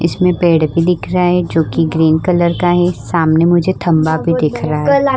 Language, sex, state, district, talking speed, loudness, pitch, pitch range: Hindi, female, Bihar, Vaishali, 220 wpm, -13 LUFS, 170 Hz, 160-180 Hz